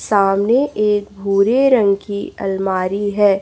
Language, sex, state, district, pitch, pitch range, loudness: Hindi, female, Chhattisgarh, Raipur, 200 Hz, 195-210 Hz, -16 LUFS